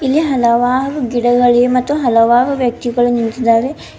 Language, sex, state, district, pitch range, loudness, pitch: Kannada, female, Karnataka, Bidar, 240-265 Hz, -13 LUFS, 245 Hz